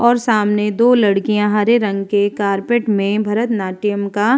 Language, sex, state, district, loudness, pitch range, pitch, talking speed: Hindi, female, Uttar Pradesh, Hamirpur, -16 LUFS, 205-230 Hz, 210 Hz, 180 wpm